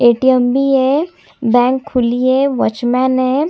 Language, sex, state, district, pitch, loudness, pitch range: Hindi, female, Chhattisgarh, Kabirdham, 260 Hz, -14 LUFS, 245-270 Hz